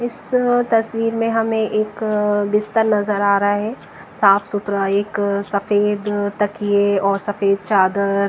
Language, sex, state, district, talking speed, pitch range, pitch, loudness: Hindi, female, Bihar, West Champaran, 160 wpm, 200-220 Hz, 205 Hz, -18 LUFS